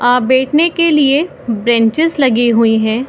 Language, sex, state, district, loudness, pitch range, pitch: Hindi, female, Bihar, Saharsa, -12 LUFS, 230-300 Hz, 250 Hz